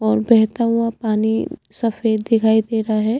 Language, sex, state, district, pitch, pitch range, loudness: Hindi, female, Chhattisgarh, Jashpur, 220 Hz, 215-230 Hz, -18 LUFS